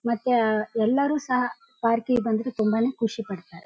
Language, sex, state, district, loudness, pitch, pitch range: Kannada, female, Karnataka, Shimoga, -24 LUFS, 230 Hz, 220-250 Hz